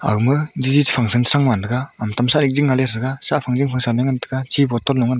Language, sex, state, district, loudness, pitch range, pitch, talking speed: Wancho, male, Arunachal Pradesh, Longding, -17 LUFS, 120-140 Hz, 130 Hz, 195 wpm